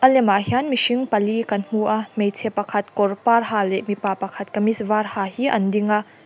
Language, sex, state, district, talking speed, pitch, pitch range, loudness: Mizo, female, Mizoram, Aizawl, 210 wpm, 210 Hz, 200-225 Hz, -21 LUFS